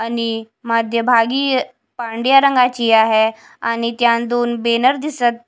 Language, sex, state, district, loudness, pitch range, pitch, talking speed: Marathi, female, Maharashtra, Washim, -16 LUFS, 230-250 Hz, 235 Hz, 120 wpm